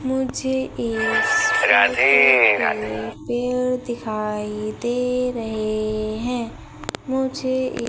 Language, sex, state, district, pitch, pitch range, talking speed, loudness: Hindi, female, Madhya Pradesh, Umaria, 245 Hz, 220-260 Hz, 85 wpm, -20 LUFS